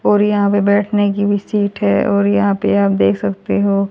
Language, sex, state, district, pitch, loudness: Hindi, female, Haryana, Rohtak, 195 Hz, -15 LUFS